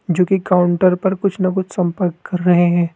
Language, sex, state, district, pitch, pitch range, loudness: Hindi, male, Rajasthan, Jaipur, 180 Hz, 175-190 Hz, -16 LUFS